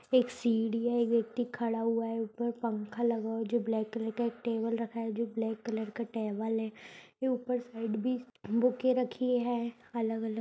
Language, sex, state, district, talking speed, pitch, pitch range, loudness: Hindi, female, Chhattisgarh, Raigarh, 215 wpm, 230 Hz, 225-240 Hz, -33 LUFS